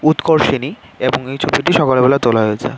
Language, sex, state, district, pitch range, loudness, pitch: Bengali, male, West Bengal, North 24 Parganas, 120-155 Hz, -14 LUFS, 135 Hz